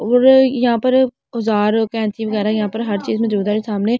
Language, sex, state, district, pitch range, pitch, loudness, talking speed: Hindi, female, Delhi, New Delhi, 210-245 Hz, 225 Hz, -17 LUFS, 210 wpm